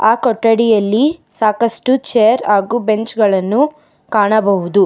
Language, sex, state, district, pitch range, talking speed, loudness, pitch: Kannada, female, Karnataka, Bangalore, 210-240 Hz, 100 wpm, -14 LUFS, 225 Hz